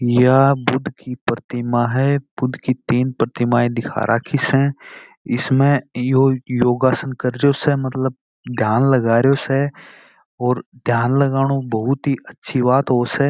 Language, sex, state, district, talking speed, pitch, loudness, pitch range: Marwari, male, Rajasthan, Churu, 125 wpm, 130 Hz, -18 LUFS, 125-135 Hz